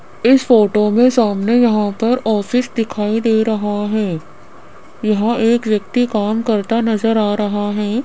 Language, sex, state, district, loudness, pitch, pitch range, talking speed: Hindi, female, Rajasthan, Jaipur, -16 LUFS, 220 Hz, 210-235 Hz, 150 wpm